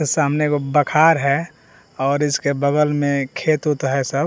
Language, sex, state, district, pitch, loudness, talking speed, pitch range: Hindi, male, Bihar, West Champaran, 145 Hz, -18 LUFS, 170 wpm, 140-155 Hz